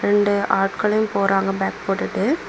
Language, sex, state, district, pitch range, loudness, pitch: Tamil, female, Tamil Nadu, Kanyakumari, 195-205 Hz, -20 LUFS, 200 Hz